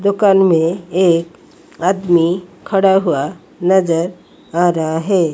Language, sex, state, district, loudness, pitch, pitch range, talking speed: Hindi, female, Odisha, Malkangiri, -15 LUFS, 175 Hz, 165-190 Hz, 110 wpm